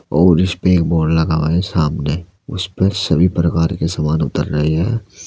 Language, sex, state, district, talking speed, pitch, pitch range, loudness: Hindi, male, Uttar Pradesh, Saharanpur, 205 wpm, 85 Hz, 80-90 Hz, -16 LUFS